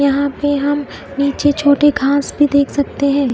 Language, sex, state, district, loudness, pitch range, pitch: Hindi, female, Odisha, Khordha, -15 LUFS, 280-290 Hz, 285 Hz